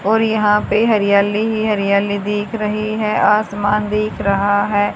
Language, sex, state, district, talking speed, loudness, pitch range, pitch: Hindi, female, Haryana, Charkhi Dadri, 155 wpm, -16 LUFS, 205-215 Hz, 210 Hz